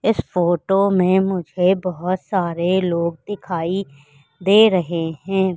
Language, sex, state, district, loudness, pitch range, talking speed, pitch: Hindi, female, Madhya Pradesh, Katni, -19 LUFS, 170-190 Hz, 120 wpm, 180 Hz